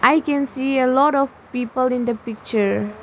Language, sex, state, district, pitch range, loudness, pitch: English, female, Arunachal Pradesh, Lower Dibang Valley, 230-275 Hz, -20 LUFS, 255 Hz